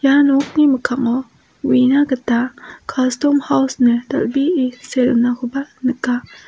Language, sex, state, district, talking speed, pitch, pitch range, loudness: Garo, female, Meghalaya, South Garo Hills, 110 wpm, 255 Hz, 250-280 Hz, -17 LUFS